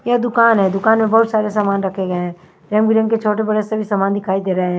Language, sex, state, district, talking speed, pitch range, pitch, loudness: Hindi, female, Himachal Pradesh, Shimla, 265 wpm, 190-220 Hz, 210 Hz, -16 LUFS